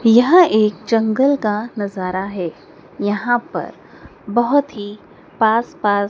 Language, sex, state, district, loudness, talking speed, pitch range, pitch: Hindi, male, Madhya Pradesh, Dhar, -17 LUFS, 120 wpm, 205-240 Hz, 215 Hz